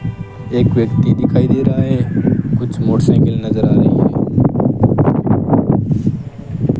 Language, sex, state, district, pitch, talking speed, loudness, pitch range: Hindi, male, Rajasthan, Bikaner, 125 Hz, 115 wpm, -14 LUFS, 120-135 Hz